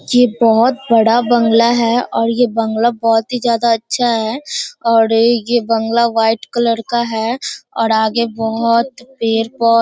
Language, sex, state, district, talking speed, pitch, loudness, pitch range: Hindi, female, Bihar, Darbhanga, 160 wpm, 230 Hz, -14 LUFS, 225-240 Hz